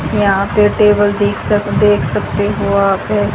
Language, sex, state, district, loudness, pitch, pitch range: Hindi, female, Haryana, Charkhi Dadri, -13 LUFS, 205 Hz, 200-210 Hz